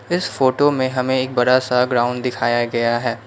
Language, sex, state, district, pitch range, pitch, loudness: Hindi, male, Assam, Kamrup Metropolitan, 120-130 Hz, 125 Hz, -18 LUFS